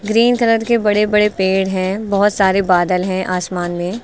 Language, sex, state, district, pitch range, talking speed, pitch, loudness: Hindi, female, Uttar Pradesh, Lucknow, 185-210 Hz, 195 wpm, 195 Hz, -15 LUFS